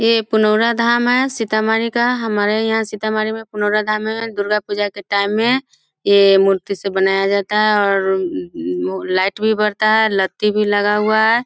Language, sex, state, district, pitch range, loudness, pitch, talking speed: Hindi, female, Bihar, Sitamarhi, 200-220 Hz, -16 LUFS, 215 Hz, 180 wpm